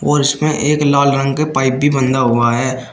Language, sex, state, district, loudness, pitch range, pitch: Hindi, male, Uttar Pradesh, Shamli, -14 LUFS, 130-145 Hz, 140 Hz